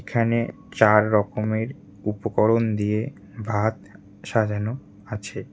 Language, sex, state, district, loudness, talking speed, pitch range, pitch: Bengali, male, West Bengal, Cooch Behar, -23 LUFS, 85 wpm, 105-115 Hz, 110 Hz